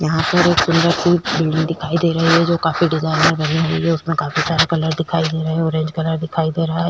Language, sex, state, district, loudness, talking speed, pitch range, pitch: Hindi, female, Goa, North and South Goa, -17 LUFS, 260 wpm, 160-170 Hz, 165 Hz